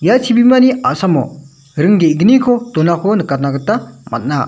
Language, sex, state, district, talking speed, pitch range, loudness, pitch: Garo, male, Meghalaya, West Garo Hills, 120 wpm, 150-245 Hz, -12 LUFS, 190 Hz